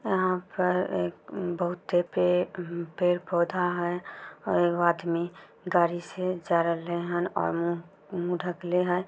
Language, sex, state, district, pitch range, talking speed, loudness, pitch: Chhattisgarhi, female, Chhattisgarh, Bilaspur, 170-180 Hz, 120 wpm, -28 LUFS, 175 Hz